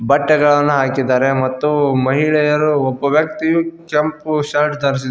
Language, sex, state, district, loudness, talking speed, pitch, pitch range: Kannada, male, Karnataka, Koppal, -15 LUFS, 105 wpm, 145 Hz, 135-155 Hz